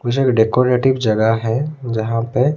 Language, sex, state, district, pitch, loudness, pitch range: Hindi, male, Odisha, Khordha, 125 Hz, -17 LUFS, 115-130 Hz